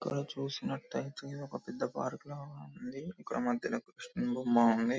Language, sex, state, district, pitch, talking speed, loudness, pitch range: Telugu, male, Telangana, Karimnagar, 140 Hz, 130 wpm, -36 LUFS, 120-145 Hz